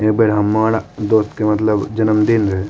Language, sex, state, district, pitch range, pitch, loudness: Maithili, male, Bihar, Madhepura, 105-110 Hz, 110 Hz, -16 LUFS